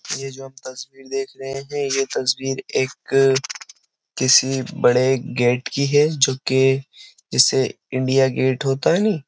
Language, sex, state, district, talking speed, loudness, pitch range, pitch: Hindi, male, Uttar Pradesh, Jyotiba Phule Nagar, 155 wpm, -19 LUFS, 130-135 Hz, 135 Hz